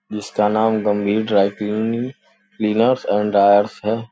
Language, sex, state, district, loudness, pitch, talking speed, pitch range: Hindi, male, Uttar Pradesh, Gorakhpur, -18 LUFS, 105 Hz, 130 wpm, 105-110 Hz